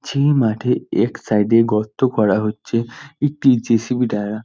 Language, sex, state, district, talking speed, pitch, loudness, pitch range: Bengali, male, West Bengal, North 24 Parganas, 150 wpm, 115 Hz, -18 LUFS, 110-130 Hz